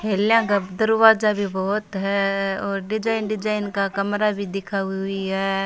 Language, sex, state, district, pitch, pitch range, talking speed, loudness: Rajasthani, female, Rajasthan, Churu, 200 Hz, 195-215 Hz, 150 wpm, -21 LUFS